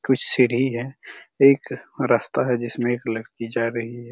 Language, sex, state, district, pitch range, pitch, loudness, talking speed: Hindi, male, Chhattisgarh, Raigarh, 115-130 Hz, 120 Hz, -22 LUFS, 175 wpm